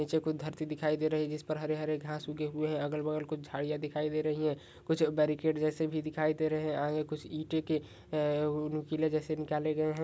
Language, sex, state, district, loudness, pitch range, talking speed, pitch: Hindi, male, Rajasthan, Churu, -34 LUFS, 150-155 Hz, 245 wpm, 155 Hz